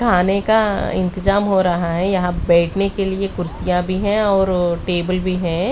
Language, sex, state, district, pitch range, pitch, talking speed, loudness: Hindi, female, Delhi, New Delhi, 180-195 Hz, 185 Hz, 180 wpm, -18 LUFS